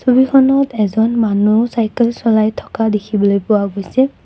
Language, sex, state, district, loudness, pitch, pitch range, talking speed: Assamese, female, Assam, Kamrup Metropolitan, -14 LUFS, 225 Hz, 210-245 Hz, 125 wpm